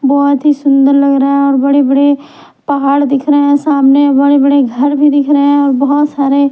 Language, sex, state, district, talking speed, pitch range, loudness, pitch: Hindi, female, Bihar, Patna, 200 wpm, 275-285 Hz, -10 LUFS, 280 Hz